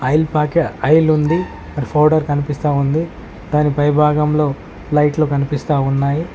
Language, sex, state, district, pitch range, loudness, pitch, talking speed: Telugu, male, Telangana, Mahabubabad, 140-155 Hz, -16 LUFS, 150 Hz, 130 wpm